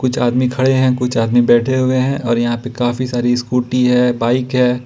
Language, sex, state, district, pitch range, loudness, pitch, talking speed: Hindi, male, Jharkhand, Ranchi, 120-130 Hz, -15 LUFS, 125 Hz, 220 wpm